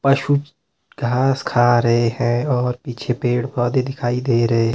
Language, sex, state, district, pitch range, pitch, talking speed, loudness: Hindi, male, Himachal Pradesh, Shimla, 120-135 Hz, 125 Hz, 150 wpm, -19 LUFS